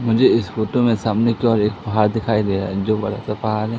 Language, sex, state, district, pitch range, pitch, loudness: Hindi, male, Madhya Pradesh, Katni, 105-115 Hz, 110 Hz, -19 LUFS